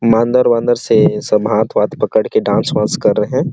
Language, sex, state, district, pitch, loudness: Hindi, male, Chhattisgarh, Sarguja, 120 Hz, -14 LUFS